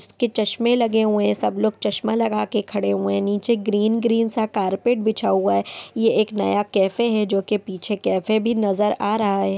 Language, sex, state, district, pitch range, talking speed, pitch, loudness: Hindi, female, Bihar, East Champaran, 195-225 Hz, 205 wpm, 210 Hz, -20 LUFS